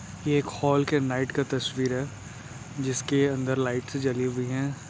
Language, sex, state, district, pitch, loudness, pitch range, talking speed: Hindi, male, Uttar Pradesh, Etah, 130 Hz, -27 LUFS, 125-140 Hz, 170 wpm